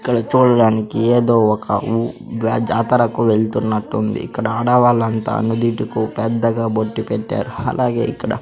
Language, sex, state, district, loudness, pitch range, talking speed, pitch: Telugu, male, Andhra Pradesh, Sri Satya Sai, -17 LUFS, 110-120 Hz, 105 wpm, 115 Hz